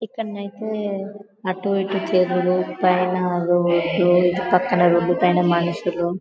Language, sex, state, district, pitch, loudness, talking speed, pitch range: Telugu, male, Telangana, Karimnagar, 180 Hz, -20 LUFS, 85 wpm, 175-195 Hz